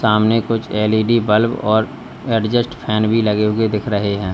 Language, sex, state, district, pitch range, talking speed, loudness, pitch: Hindi, male, Uttar Pradesh, Lalitpur, 105-115 Hz, 180 wpm, -17 LUFS, 110 Hz